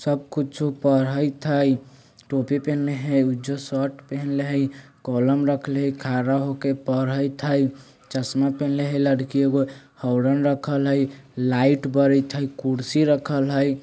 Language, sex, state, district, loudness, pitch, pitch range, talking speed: Bajjika, male, Bihar, Vaishali, -23 LUFS, 140 Hz, 135-140 Hz, 145 wpm